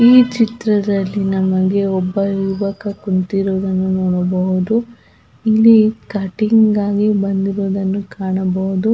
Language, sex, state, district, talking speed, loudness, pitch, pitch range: Kannada, female, Karnataka, Belgaum, 80 wpm, -16 LUFS, 195 Hz, 190-215 Hz